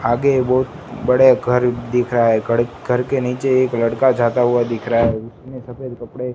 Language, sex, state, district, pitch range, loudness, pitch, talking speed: Hindi, male, Gujarat, Gandhinagar, 120-130 Hz, -17 LUFS, 125 Hz, 200 wpm